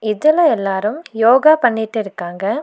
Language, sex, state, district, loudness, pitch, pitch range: Tamil, female, Tamil Nadu, Nilgiris, -15 LUFS, 220 Hz, 210-305 Hz